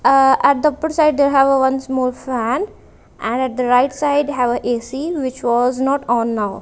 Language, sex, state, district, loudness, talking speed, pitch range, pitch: English, female, Punjab, Kapurthala, -17 LUFS, 215 wpm, 245-280 Hz, 265 Hz